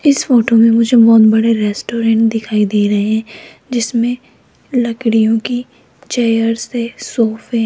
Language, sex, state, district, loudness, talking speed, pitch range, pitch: Hindi, female, Rajasthan, Jaipur, -13 LUFS, 140 wpm, 225-240 Hz, 230 Hz